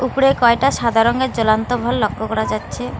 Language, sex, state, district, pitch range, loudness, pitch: Bengali, female, West Bengal, Alipurduar, 230-260 Hz, -17 LUFS, 245 Hz